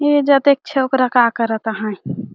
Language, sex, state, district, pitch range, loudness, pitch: Chhattisgarhi, female, Chhattisgarh, Jashpur, 225-280 Hz, -16 LUFS, 255 Hz